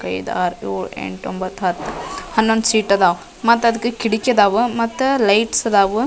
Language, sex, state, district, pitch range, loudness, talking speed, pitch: Kannada, female, Karnataka, Dharwad, 185-230 Hz, -18 LUFS, 160 wpm, 220 Hz